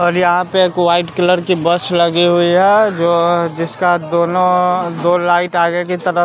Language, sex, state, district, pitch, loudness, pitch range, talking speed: Hindi, male, Bihar, West Champaran, 175 Hz, -13 LUFS, 170-180 Hz, 175 wpm